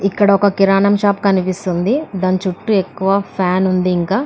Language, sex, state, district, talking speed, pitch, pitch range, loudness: Telugu, female, Andhra Pradesh, Anantapur, 170 wpm, 195 Hz, 185-200 Hz, -15 LUFS